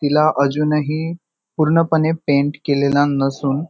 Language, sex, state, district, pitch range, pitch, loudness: Marathi, male, Maharashtra, Nagpur, 140-155 Hz, 150 Hz, -18 LUFS